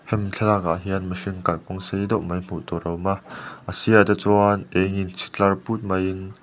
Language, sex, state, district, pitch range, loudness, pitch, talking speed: Mizo, male, Mizoram, Aizawl, 90-100 Hz, -22 LUFS, 95 Hz, 240 wpm